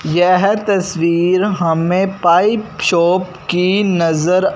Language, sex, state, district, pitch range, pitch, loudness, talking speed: Hindi, male, Punjab, Fazilka, 170-195 Hz, 180 Hz, -14 LUFS, 90 wpm